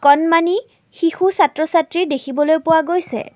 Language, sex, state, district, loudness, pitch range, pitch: Assamese, female, Assam, Kamrup Metropolitan, -16 LUFS, 295-355 Hz, 325 Hz